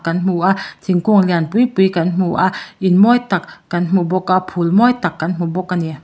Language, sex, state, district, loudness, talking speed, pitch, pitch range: Mizo, male, Mizoram, Aizawl, -16 LUFS, 250 wpm, 185 Hz, 175-190 Hz